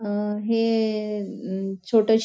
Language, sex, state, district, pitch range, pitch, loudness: Marathi, female, Maharashtra, Nagpur, 205-220 Hz, 210 Hz, -24 LUFS